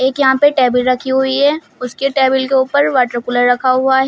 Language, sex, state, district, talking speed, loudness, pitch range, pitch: Hindi, female, Uttar Pradesh, Shamli, 235 wpm, -14 LUFS, 255-270 Hz, 265 Hz